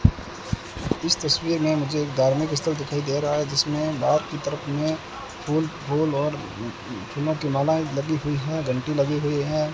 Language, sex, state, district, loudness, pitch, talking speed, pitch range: Hindi, male, Rajasthan, Bikaner, -25 LUFS, 150 Hz, 180 wpm, 140-155 Hz